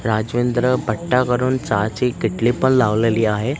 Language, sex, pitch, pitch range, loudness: Marathi, male, 120 Hz, 110-125 Hz, -18 LUFS